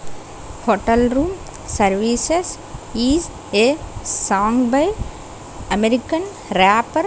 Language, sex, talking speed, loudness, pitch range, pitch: English, female, 75 wpm, -18 LUFS, 220-315 Hz, 245 Hz